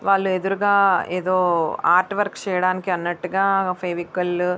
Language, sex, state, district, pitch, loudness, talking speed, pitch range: Telugu, female, Andhra Pradesh, Visakhapatnam, 185 Hz, -20 LUFS, 120 wpm, 180-195 Hz